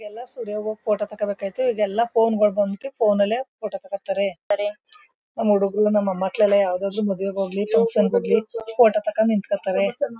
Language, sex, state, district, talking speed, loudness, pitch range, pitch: Kannada, female, Karnataka, Mysore, 120 wpm, -22 LUFS, 200-230 Hz, 210 Hz